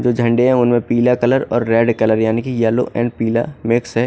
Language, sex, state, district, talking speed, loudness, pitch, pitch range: Hindi, male, Odisha, Khordha, 235 wpm, -16 LUFS, 120 Hz, 115-125 Hz